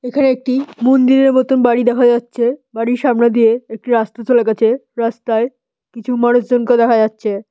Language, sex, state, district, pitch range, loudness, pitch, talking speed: Bengali, female, West Bengal, Paschim Medinipur, 230-255 Hz, -14 LUFS, 240 Hz, 150 wpm